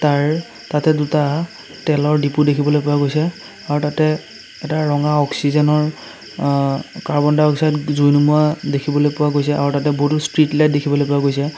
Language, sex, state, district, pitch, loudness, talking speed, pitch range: Assamese, male, Assam, Sonitpur, 150 Hz, -17 LUFS, 150 wpm, 145-150 Hz